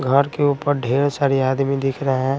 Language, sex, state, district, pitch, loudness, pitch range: Hindi, male, Bihar, Patna, 135 Hz, -19 LUFS, 135-145 Hz